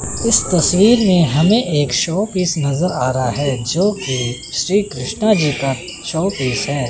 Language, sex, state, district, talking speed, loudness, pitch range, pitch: Hindi, male, Chandigarh, Chandigarh, 155 wpm, -16 LUFS, 130-190 Hz, 160 Hz